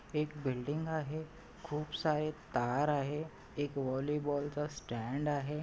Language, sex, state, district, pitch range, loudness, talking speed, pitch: Marathi, male, Maharashtra, Nagpur, 140-155 Hz, -37 LUFS, 130 wpm, 150 Hz